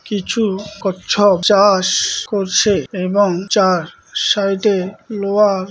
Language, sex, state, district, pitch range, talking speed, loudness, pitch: Bengali, male, West Bengal, Malda, 190-205 Hz, 85 wpm, -16 LUFS, 200 Hz